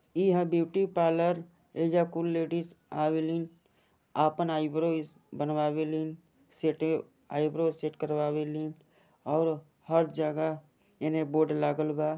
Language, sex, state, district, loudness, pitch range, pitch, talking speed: Bhojpuri, male, Jharkhand, Sahebganj, -30 LUFS, 155-165 Hz, 155 Hz, 120 wpm